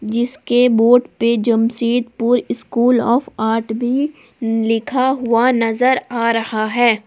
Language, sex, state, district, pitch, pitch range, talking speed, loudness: Hindi, female, Jharkhand, Palamu, 235 Hz, 225-245 Hz, 120 wpm, -16 LUFS